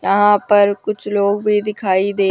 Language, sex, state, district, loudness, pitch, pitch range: Hindi, female, Rajasthan, Jaipur, -16 LUFS, 205 Hz, 200-210 Hz